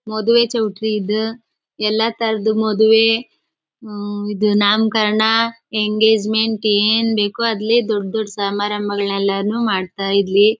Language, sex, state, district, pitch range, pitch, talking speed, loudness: Kannada, female, Karnataka, Chamarajanagar, 205-225 Hz, 215 Hz, 100 wpm, -17 LUFS